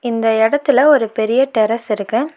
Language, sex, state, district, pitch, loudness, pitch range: Tamil, female, Tamil Nadu, Nilgiris, 230 Hz, -15 LUFS, 220-270 Hz